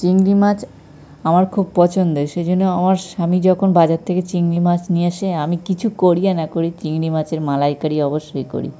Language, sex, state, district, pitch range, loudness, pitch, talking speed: Bengali, male, West Bengal, North 24 Parganas, 160-185 Hz, -17 LUFS, 175 Hz, 170 wpm